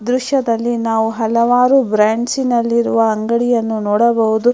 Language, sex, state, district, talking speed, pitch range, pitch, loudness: Kannada, female, Karnataka, Mysore, 105 wpm, 225-245 Hz, 235 Hz, -15 LUFS